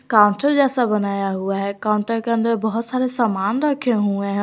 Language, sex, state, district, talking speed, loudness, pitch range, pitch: Hindi, female, Jharkhand, Garhwa, 190 wpm, -19 LUFS, 200-250 Hz, 225 Hz